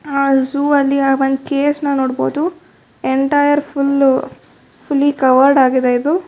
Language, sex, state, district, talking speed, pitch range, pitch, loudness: Kannada, female, Karnataka, Shimoga, 135 wpm, 265-290 Hz, 275 Hz, -15 LUFS